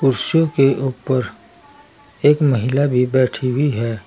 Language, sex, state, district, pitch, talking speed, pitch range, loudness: Hindi, male, Uttar Pradesh, Saharanpur, 130 Hz, 135 wpm, 125-140 Hz, -16 LUFS